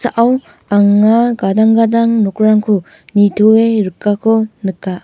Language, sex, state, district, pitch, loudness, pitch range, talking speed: Garo, female, Meghalaya, North Garo Hills, 215 Hz, -12 LUFS, 205-230 Hz, 85 wpm